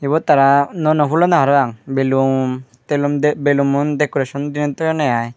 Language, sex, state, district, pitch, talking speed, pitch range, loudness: Chakma, male, Tripura, Unakoti, 140 Hz, 145 wpm, 135-150 Hz, -16 LUFS